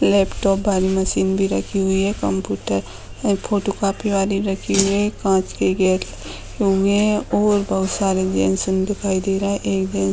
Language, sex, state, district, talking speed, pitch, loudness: Hindi, female, Bihar, Bhagalpur, 185 wpm, 190 Hz, -19 LUFS